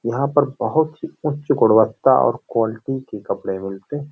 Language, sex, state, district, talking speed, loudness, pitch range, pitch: Hindi, male, Uttar Pradesh, Hamirpur, 175 wpm, -20 LUFS, 115-145 Hz, 135 Hz